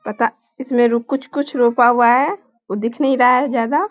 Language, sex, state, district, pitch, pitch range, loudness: Hindi, female, Bihar, Samastipur, 250 Hz, 240-275 Hz, -16 LUFS